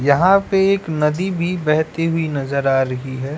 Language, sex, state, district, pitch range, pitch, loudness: Hindi, male, Bihar, West Champaran, 140-180 Hz, 155 Hz, -18 LUFS